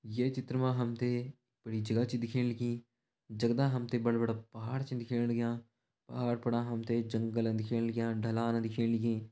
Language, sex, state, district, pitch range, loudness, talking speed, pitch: Hindi, male, Uttarakhand, Uttarkashi, 115-120 Hz, -34 LUFS, 185 wpm, 120 Hz